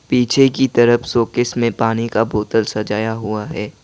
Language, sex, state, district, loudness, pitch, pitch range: Hindi, male, Assam, Kamrup Metropolitan, -17 LUFS, 115 Hz, 110-120 Hz